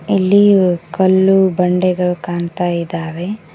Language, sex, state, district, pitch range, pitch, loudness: Kannada, female, Karnataka, Koppal, 175-190 Hz, 180 Hz, -14 LUFS